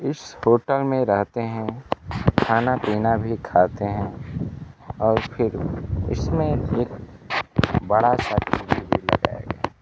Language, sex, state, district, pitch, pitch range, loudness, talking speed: Hindi, male, Bihar, Kaimur, 115 Hz, 105-120 Hz, -23 LUFS, 105 wpm